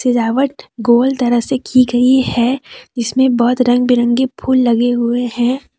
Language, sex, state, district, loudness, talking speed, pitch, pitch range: Hindi, female, Jharkhand, Deoghar, -14 LUFS, 155 wpm, 245 Hz, 240-260 Hz